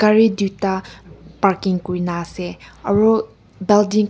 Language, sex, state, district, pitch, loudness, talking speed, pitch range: Nagamese, female, Nagaland, Kohima, 195 Hz, -18 LUFS, 115 wpm, 180-210 Hz